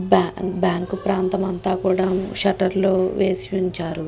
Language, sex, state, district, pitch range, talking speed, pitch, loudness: Telugu, female, Andhra Pradesh, Guntur, 185-190 Hz, 120 wpm, 185 Hz, -21 LUFS